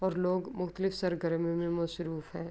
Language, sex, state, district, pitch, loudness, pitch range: Urdu, female, Andhra Pradesh, Anantapur, 175 Hz, -33 LUFS, 170-180 Hz